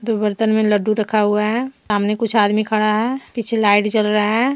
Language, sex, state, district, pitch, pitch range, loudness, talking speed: Hindi, female, Jharkhand, Deoghar, 215 Hz, 210-225 Hz, -17 LUFS, 210 wpm